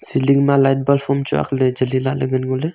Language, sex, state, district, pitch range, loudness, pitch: Wancho, male, Arunachal Pradesh, Longding, 130-140 Hz, -17 LUFS, 135 Hz